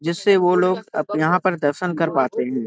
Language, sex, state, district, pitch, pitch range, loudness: Hindi, male, Uttar Pradesh, Hamirpur, 170 Hz, 155-185 Hz, -19 LUFS